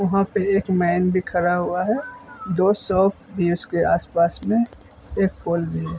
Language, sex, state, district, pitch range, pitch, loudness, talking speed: Hindi, male, Uttar Pradesh, Budaun, 175-200 Hz, 185 Hz, -21 LUFS, 210 wpm